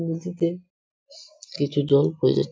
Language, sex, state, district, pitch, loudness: Bengali, male, West Bengal, Purulia, 170 Hz, -23 LUFS